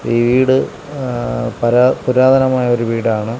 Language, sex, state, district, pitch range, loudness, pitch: Malayalam, male, Kerala, Kasaragod, 115-130 Hz, -15 LUFS, 120 Hz